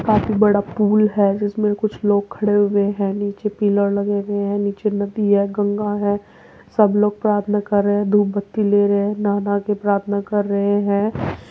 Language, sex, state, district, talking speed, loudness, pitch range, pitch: Hindi, female, Uttar Pradesh, Muzaffarnagar, 180 wpm, -19 LUFS, 200-210 Hz, 205 Hz